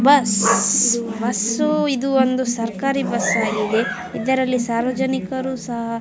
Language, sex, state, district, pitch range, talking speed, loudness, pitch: Kannada, female, Karnataka, Raichur, 230-265 Hz, 110 wpm, -19 LUFS, 245 Hz